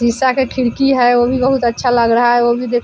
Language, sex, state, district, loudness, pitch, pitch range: Hindi, female, Bihar, Vaishali, -13 LUFS, 245 Hz, 240-255 Hz